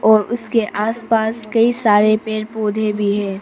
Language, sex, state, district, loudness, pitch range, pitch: Hindi, female, Arunachal Pradesh, Papum Pare, -17 LUFS, 210-225 Hz, 215 Hz